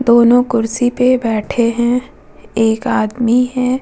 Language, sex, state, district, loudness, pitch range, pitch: Hindi, female, Bihar, Vaishali, -14 LUFS, 230-250 Hz, 240 Hz